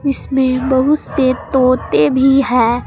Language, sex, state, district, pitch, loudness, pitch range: Hindi, female, Uttar Pradesh, Saharanpur, 260 Hz, -14 LUFS, 255-270 Hz